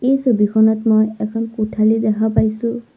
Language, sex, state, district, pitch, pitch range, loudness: Assamese, female, Assam, Sonitpur, 220 Hz, 215-230 Hz, -17 LUFS